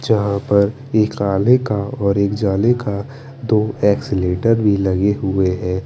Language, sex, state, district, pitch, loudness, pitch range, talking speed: Hindi, male, Bihar, Kaimur, 100 Hz, -17 LUFS, 100-115 Hz, 155 wpm